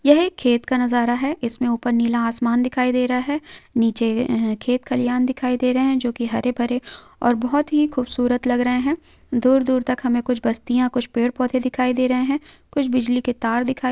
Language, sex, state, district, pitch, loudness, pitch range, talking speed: Hindi, female, Jharkhand, Sahebganj, 250 Hz, -20 LUFS, 240-260 Hz, 215 wpm